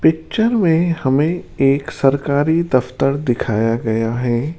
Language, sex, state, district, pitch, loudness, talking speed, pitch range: Hindi, male, Rajasthan, Jaipur, 140 Hz, -17 LUFS, 115 wpm, 125-160 Hz